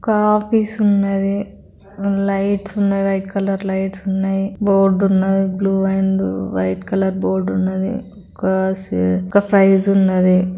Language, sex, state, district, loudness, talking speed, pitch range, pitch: Telugu, female, Telangana, Karimnagar, -17 LUFS, 120 wpm, 190-200 Hz, 195 Hz